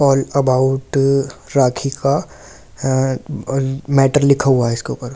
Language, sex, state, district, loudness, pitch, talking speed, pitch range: Hindi, male, Delhi, New Delhi, -17 LUFS, 135 Hz, 130 wpm, 130-140 Hz